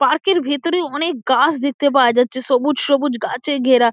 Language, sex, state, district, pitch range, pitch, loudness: Bengali, female, West Bengal, Dakshin Dinajpur, 255-300 Hz, 280 Hz, -17 LUFS